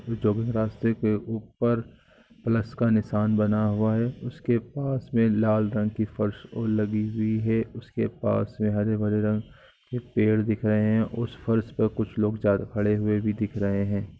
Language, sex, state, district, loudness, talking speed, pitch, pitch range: Hindi, male, Bihar, East Champaran, -26 LUFS, 215 wpm, 110 Hz, 105-115 Hz